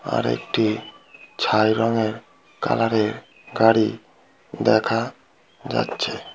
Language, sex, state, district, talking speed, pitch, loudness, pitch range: Bengali, female, West Bengal, Kolkata, 75 wpm, 110 Hz, -22 LUFS, 110-115 Hz